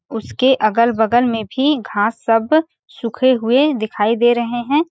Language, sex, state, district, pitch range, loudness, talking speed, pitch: Hindi, female, Chhattisgarh, Balrampur, 225-265 Hz, -16 LUFS, 160 wpm, 240 Hz